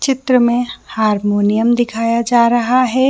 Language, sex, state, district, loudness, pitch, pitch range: Hindi, female, Jharkhand, Jamtara, -14 LUFS, 235 Hz, 225-250 Hz